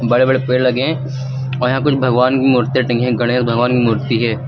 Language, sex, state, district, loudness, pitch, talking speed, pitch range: Hindi, male, Uttar Pradesh, Lucknow, -15 LUFS, 125 Hz, 240 wpm, 120-130 Hz